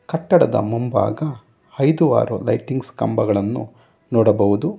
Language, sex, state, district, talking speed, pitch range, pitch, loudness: Kannada, male, Karnataka, Bangalore, 90 wpm, 110-145 Hz, 120 Hz, -19 LUFS